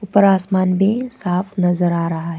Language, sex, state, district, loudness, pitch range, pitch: Hindi, female, Arunachal Pradesh, Lower Dibang Valley, -17 LUFS, 175-200 Hz, 185 Hz